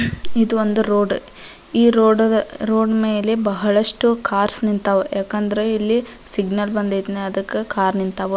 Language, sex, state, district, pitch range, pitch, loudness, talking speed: Kannada, female, Karnataka, Dharwad, 200-220 Hz, 210 Hz, -18 LUFS, 110 wpm